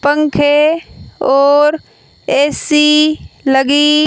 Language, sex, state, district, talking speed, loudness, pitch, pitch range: Hindi, female, Haryana, Rohtak, 60 wpm, -12 LUFS, 295 Hz, 285-300 Hz